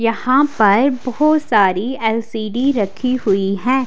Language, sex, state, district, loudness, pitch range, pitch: Hindi, female, Haryana, Charkhi Dadri, -16 LUFS, 215-265 Hz, 245 Hz